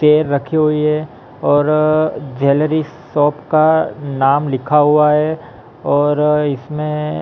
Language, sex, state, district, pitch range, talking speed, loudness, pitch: Hindi, male, Maharashtra, Mumbai Suburban, 140-155 Hz, 125 wpm, -15 LUFS, 150 Hz